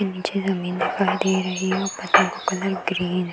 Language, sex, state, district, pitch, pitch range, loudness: Hindi, female, Uttar Pradesh, Hamirpur, 190 Hz, 180-195 Hz, -22 LUFS